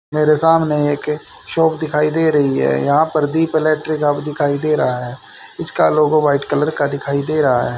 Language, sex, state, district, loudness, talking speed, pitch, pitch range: Hindi, male, Haryana, Rohtak, -16 LUFS, 200 wpm, 150 Hz, 145-155 Hz